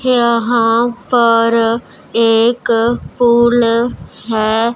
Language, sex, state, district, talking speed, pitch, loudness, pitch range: Hindi, female, Punjab, Pathankot, 65 wpm, 235 Hz, -13 LUFS, 230-240 Hz